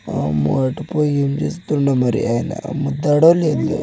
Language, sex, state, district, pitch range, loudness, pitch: Telugu, male, Telangana, Nalgonda, 130-155 Hz, -18 LUFS, 145 Hz